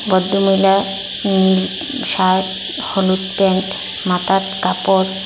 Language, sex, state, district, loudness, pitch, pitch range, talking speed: Bengali, female, Assam, Hailakandi, -16 LUFS, 190 Hz, 190-195 Hz, 80 wpm